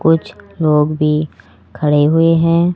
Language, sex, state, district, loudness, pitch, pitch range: Hindi, male, Rajasthan, Jaipur, -14 LUFS, 150 Hz, 125-165 Hz